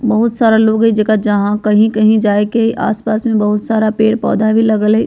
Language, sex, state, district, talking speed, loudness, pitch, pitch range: Bajjika, female, Bihar, Vaishali, 200 wpm, -13 LUFS, 220 Hz, 215-225 Hz